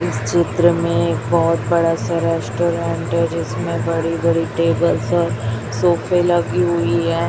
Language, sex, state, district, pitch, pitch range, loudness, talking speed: Hindi, female, Chhattisgarh, Raipur, 165 Hz, 120-170 Hz, -18 LUFS, 150 wpm